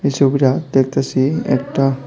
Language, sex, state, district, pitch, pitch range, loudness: Bengali, male, Tripura, West Tripura, 135 Hz, 130-135 Hz, -16 LUFS